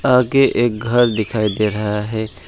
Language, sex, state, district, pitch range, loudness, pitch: Hindi, male, West Bengal, Alipurduar, 105-120 Hz, -17 LUFS, 110 Hz